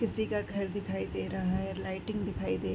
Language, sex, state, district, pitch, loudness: Hindi, female, Uttarakhand, Tehri Garhwal, 95 Hz, -34 LUFS